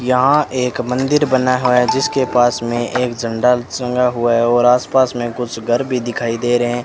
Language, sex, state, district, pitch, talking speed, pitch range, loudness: Hindi, male, Rajasthan, Bikaner, 125 Hz, 210 wpm, 120-125 Hz, -16 LUFS